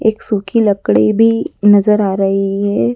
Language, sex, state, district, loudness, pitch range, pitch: Hindi, female, Madhya Pradesh, Dhar, -13 LUFS, 195-210 Hz, 205 Hz